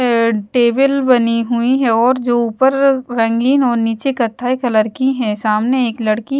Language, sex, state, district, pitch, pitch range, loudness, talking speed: Hindi, female, Bihar, West Champaran, 240 Hz, 230-260 Hz, -15 LUFS, 160 wpm